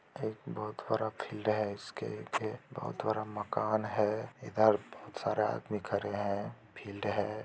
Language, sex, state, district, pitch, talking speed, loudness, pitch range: Hindi, male, Bihar, Gopalganj, 105 Hz, 155 wpm, -35 LUFS, 105-110 Hz